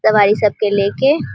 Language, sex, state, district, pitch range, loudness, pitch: Maithili, female, Bihar, Vaishali, 205-215 Hz, -15 LUFS, 210 Hz